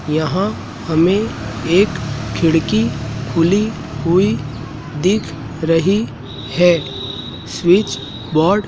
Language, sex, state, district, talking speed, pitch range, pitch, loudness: Hindi, male, Madhya Pradesh, Dhar, 85 wpm, 130-180 Hz, 155 Hz, -17 LUFS